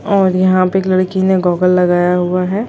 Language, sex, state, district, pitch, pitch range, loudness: Hindi, female, Chhattisgarh, Bilaspur, 185 Hz, 180-190 Hz, -13 LUFS